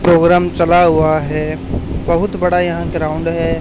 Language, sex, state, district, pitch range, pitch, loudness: Hindi, male, Haryana, Charkhi Dadri, 155-175 Hz, 165 Hz, -14 LUFS